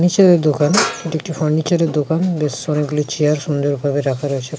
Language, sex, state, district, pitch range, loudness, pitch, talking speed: Bengali, male, West Bengal, Jalpaiguri, 145-165 Hz, -17 LUFS, 150 Hz, 185 wpm